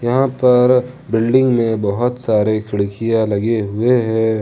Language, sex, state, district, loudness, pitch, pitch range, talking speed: Hindi, male, Jharkhand, Ranchi, -16 LUFS, 115 Hz, 110-125 Hz, 135 wpm